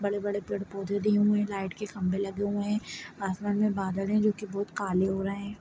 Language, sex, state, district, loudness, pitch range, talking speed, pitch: Hindi, male, Chhattisgarh, Bastar, -29 LUFS, 195-210 Hz, 255 wpm, 205 Hz